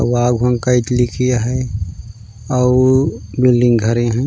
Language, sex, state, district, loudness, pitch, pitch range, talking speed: Chhattisgarhi, male, Chhattisgarh, Raigarh, -15 LUFS, 120 Hz, 115-125 Hz, 70 wpm